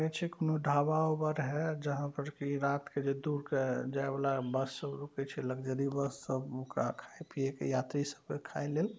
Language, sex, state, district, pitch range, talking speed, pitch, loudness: Maithili, male, Bihar, Saharsa, 135-150 Hz, 195 wpm, 140 Hz, -35 LUFS